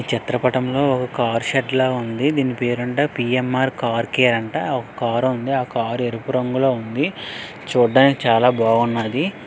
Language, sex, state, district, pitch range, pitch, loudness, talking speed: Telugu, male, Andhra Pradesh, Srikakulam, 120-130 Hz, 125 Hz, -19 LUFS, 145 wpm